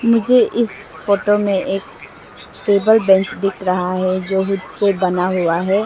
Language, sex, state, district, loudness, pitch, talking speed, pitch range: Hindi, female, Arunachal Pradesh, Lower Dibang Valley, -17 LUFS, 195 Hz, 155 wpm, 185-205 Hz